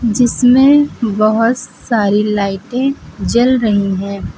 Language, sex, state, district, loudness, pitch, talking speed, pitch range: Hindi, female, Uttar Pradesh, Lucknow, -13 LUFS, 230 Hz, 95 wpm, 205-250 Hz